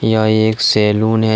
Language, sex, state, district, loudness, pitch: Hindi, male, Jharkhand, Deoghar, -14 LUFS, 110 Hz